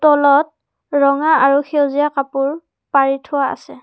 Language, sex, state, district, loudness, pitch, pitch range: Assamese, female, Assam, Kamrup Metropolitan, -16 LUFS, 285 Hz, 275-295 Hz